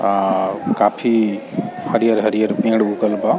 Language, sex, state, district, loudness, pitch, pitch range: Bhojpuri, male, Bihar, East Champaran, -18 LUFS, 105 Hz, 100-110 Hz